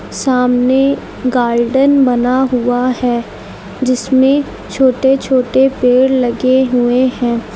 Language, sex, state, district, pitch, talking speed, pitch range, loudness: Hindi, female, Uttar Pradesh, Lucknow, 255 Hz, 95 wpm, 245-265 Hz, -13 LUFS